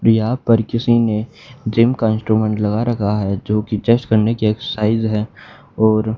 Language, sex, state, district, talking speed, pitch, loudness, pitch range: Hindi, male, Haryana, Charkhi Dadri, 175 wpm, 110 Hz, -17 LUFS, 105-115 Hz